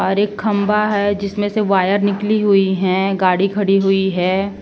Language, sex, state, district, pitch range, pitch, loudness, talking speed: Hindi, female, Uttar Pradesh, Ghazipur, 190-205 Hz, 200 Hz, -16 LUFS, 180 wpm